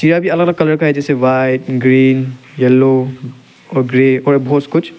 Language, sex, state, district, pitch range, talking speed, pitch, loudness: Hindi, male, Arunachal Pradesh, Lower Dibang Valley, 130-155 Hz, 205 wpm, 130 Hz, -13 LUFS